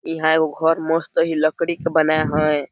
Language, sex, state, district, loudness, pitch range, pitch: Awadhi, male, Chhattisgarh, Balrampur, -19 LUFS, 155-165 Hz, 160 Hz